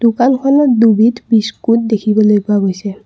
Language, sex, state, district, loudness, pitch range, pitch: Assamese, female, Assam, Kamrup Metropolitan, -12 LUFS, 210-235 Hz, 225 Hz